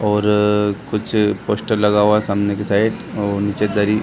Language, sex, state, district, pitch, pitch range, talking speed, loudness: Hindi, male, Bihar, Saran, 105 Hz, 100-105 Hz, 210 wpm, -18 LUFS